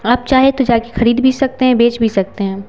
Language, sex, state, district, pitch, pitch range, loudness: Hindi, female, Bihar, Patna, 240 Hz, 225-260 Hz, -13 LUFS